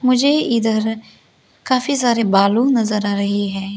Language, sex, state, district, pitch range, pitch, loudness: Hindi, female, Arunachal Pradesh, Lower Dibang Valley, 205-255 Hz, 225 Hz, -17 LUFS